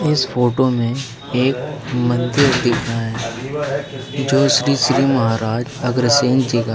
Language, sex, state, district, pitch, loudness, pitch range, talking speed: Hindi, female, Uttar Pradesh, Lucknow, 130 Hz, -17 LUFS, 120-140 Hz, 135 wpm